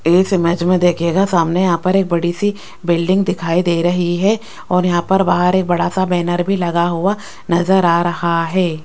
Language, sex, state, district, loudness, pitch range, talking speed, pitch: Hindi, female, Rajasthan, Jaipur, -16 LUFS, 170-185 Hz, 205 wpm, 175 Hz